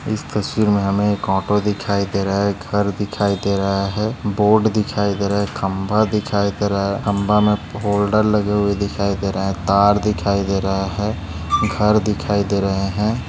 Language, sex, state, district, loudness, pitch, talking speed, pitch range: Hindi, male, Maharashtra, Sindhudurg, -19 LUFS, 100 Hz, 205 wpm, 100-105 Hz